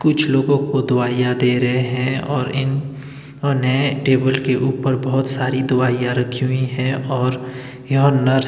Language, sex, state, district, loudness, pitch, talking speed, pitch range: Hindi, male, Himachal Pradesh, Shimla, -18 LUFS, 130 Hz, 155 wpm, 130-135 Hz